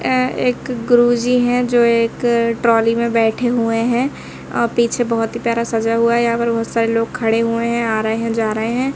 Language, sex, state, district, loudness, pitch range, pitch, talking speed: Hindi, male, Madhya Pradesh, Bhopal, -17 LUFS, 230-240 Hz, 235 Hz, 210 wpm